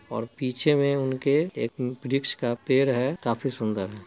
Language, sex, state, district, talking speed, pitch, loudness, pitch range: Hindi, male, Bihar, Muzaffarpur, 190 wpm, 130 Hz, -26 LUFS, 115-140 Hz